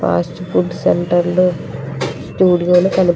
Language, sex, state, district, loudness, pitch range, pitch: Telugu, female, Andhra Pradesh, Srikakulam, -16 LUFS, 175-180 Hz, 175 Hz